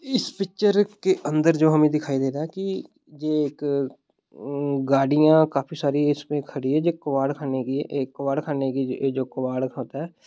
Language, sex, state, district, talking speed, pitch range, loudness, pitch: Hindi, male, Bihar, Muzaffarpur, 175 wpm, 135-155 Hz, -23 LUFS, 145 Hz